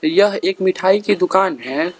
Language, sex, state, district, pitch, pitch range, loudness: Hindi, male, Arunachal Pradesh, Lower Dibang Valley, 190 Hz, 185-205 Hz, -17 LUFS